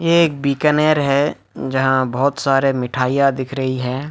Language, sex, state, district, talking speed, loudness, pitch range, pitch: Hindi, male, Jharkhand, Jamtara, 160 wpm, -17 LUFS, 130-145 Hz, 135 Hz